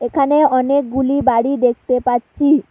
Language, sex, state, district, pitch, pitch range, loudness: Bengali, female, West Bengal, Alipurduar, 265 Hz, 245-280 Hz, -15 LUFS